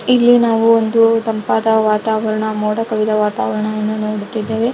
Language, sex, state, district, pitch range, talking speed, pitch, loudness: Kannada, female, Karnataka, Shimoga, 215-225 Hz, 125 wpm, 220 Hz, -15 LUFS